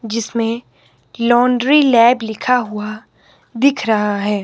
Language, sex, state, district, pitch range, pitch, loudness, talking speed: Hindi, male, Himachal Pradesh, Shimla, 215-250 Hz, 230 Hz, -15 LUFS, 110 wpm